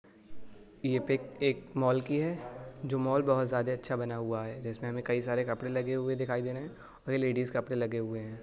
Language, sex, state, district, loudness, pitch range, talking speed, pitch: Hindi, male, Uttar Pradesh, Budaun, -33 LUFS, 120-130 Hz, 220 wpm, 125 Hz